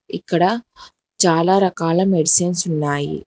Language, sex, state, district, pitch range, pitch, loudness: Telugu, female, Telangana, Hyderabad, 165-190 Hz, 175 Hz, -17 LUFS